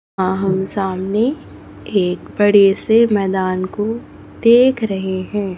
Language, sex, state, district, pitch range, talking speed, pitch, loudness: Hindi, female, Chhattisgarh, Raipur, 190-215 Hz, 120 wpm, 195 Hz, -16 LUFS